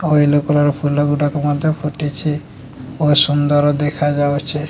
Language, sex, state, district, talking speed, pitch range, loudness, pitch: Odia, male, Odisha, Nuapada, 75 wpm, 145-150 Hz, -16 LUFS, 145 Hz